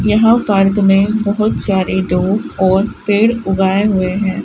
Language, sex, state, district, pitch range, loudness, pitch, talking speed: Hindi, female, Rajasthan, Bikaner, 190-210 Hz, -14 LUFS, 200 Hz, 150 wpm